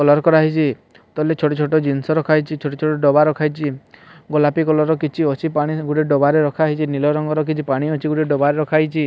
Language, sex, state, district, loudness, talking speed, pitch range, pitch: Odia, male, Odisha, Sambalpur, -18 LUFS, 200 wpm, 145-155 Hz, 150 Hz